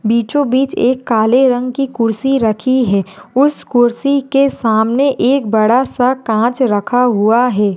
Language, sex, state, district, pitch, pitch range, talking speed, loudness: Hindi, female, Rajasthan, Churu, 245 Hz, 225-265 Hz, 155 wpm, -13 LUFS